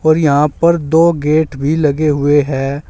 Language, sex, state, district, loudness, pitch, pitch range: Hindi, male, Uttar Pradesh, Saharanpur, -13 LUFS, 150 Hz, 145-155 Hz